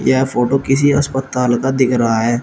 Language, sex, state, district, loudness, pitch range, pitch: Hindi, male, Uttar Pradesh, Shamli, -15 LUFS, 120-135 Hz, 130 Hz